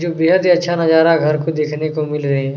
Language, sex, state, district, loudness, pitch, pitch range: Hindi, male, Chhattisgarh, Kabirdham, -15 LUFS, 160 Hz, 150-165 Hz